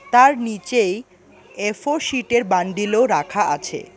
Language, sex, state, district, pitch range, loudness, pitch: Bengali, male, West Bengal, Alipurduar, 195-250 Hz, -19 LUFS, 225 Hz